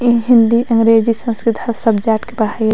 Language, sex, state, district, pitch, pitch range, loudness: Maithili, female, Bihar, Madhepura, 230 Hz, 220-235 Hz, -14 LUFS